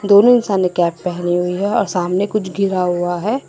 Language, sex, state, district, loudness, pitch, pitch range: Hindi, female, Assam, Sonitpur, -16 LUFS, 185 Hz, 175-205 Hz